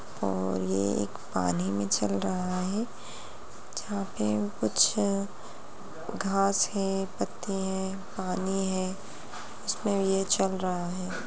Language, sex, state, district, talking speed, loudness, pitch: Hindi, female, Bihar, Lakhisarai, 120 wpm, -29 LUFS, 190 Hz